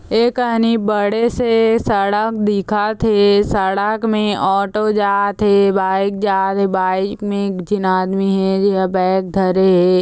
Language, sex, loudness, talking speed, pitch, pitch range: Chhattisgarhi, female, -16 LUFS, 150 wpm, 200 Hz, 190-215 Hz